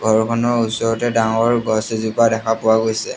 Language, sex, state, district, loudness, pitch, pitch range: Assamese, male, Assam, Sonitpur, -17 LUFS, 115 Hz, 110-115 Hz